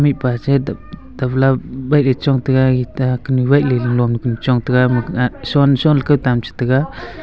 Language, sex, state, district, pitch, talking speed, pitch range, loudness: Wancho, male, Arunachal Pradesh, Longding, 130 Hz, 100 wpm, 125-135 Hz, -16 LUFS